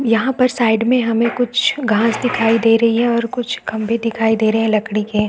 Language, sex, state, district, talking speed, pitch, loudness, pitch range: Hindi, female, Chhattisgarh, Bilaspur, 225 wpm, 230 Hz, -16 LUFS, 225-245 Hz